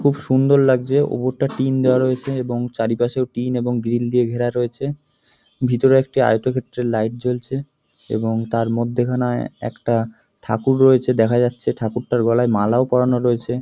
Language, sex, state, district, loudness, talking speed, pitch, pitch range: Bengali, male, West Bengal, North 24 Parganas, -19 LUFS, 145 wpm, 125 Hz, 120-130 Hz